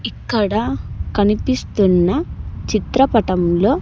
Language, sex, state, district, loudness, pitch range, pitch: Telugu, male, Andhra Pradesh, Sri Satya Sai, -17 LUFS, 185-240 Hz, 210 Hz